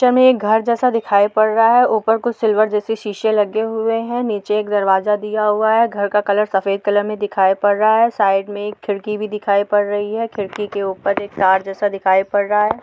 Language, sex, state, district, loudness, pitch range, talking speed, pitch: Hindi, female, Bihar, Saharsa, -17 LUFS, 205-220 Hz, 245 wpm, 210 Hz